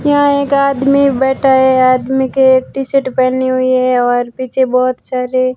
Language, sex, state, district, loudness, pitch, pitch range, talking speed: Hindi, female, Rajasthan, Barmer, -12 LUFS, 260 Hz, 255-270 Hz, 170 wpm